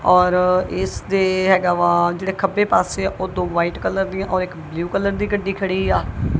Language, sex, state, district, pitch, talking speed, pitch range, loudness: Punjabi, female, Punjab, Kapurthala, 185 Hz, 195 wpm, 180-195 Hz, -19 LUFS